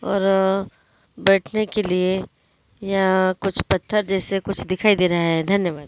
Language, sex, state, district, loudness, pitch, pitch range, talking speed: Hindi, female, Maharashtra, Dhule, -20 LUFS, 195 Hz, 185-200 Hz, 155 wpm